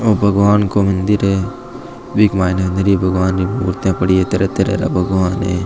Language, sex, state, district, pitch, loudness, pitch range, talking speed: Marwari, male, Rajasthan, Nagaur, 95 Hz, -15 LUFS, 95-100 Hz, 170 wpm